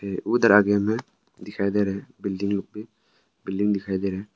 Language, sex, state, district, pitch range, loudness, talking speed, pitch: Hindi, male, Arunachal Pradesh, Papum Pare, 95-105 Hz, -24 LUFS, 205 wpm, 100 Hz